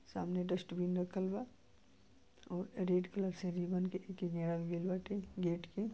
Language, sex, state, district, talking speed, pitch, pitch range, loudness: Bhojpuri, male, Uttar Pradesh, Gorakhpur, 160 wpm, 180 Hz, 180-190 Hz, -39 LUFS